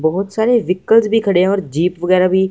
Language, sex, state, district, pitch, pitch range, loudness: Hindi, male, Punjab, Fazilka, 190 Hz, 180-220 Hz, -15 LUFS